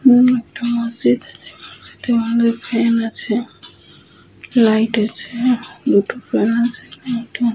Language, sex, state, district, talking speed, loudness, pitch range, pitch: Bengali, female, Jharkhand, Sahebganj, 85 wpm, -18 LUFS, 225-245 Hz, 235 Hz